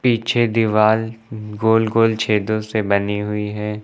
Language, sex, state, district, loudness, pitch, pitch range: Hindi, male, Uttar Pradesh, Lucknow, -18 LUFS, 110 Hz, 105-115 Hz